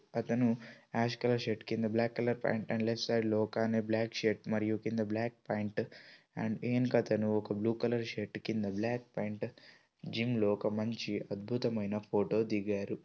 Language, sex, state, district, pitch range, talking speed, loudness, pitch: Telugu, male, Telangana, Karimnagar, 105-115 Hz, 160 wpm, -34 LUFS, 110 Hz